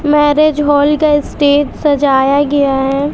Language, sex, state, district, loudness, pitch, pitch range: Hindi, female, Bihar, West Champaran, -11 LUFS, 290 Hz, 285-295 Hz